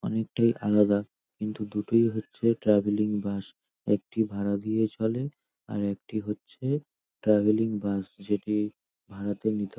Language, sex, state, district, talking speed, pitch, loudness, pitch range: Bengali, male, West Bengal, North 24 Parganas, 115 wpm, 105 Hz, -28 LUFS, 100-110 Hz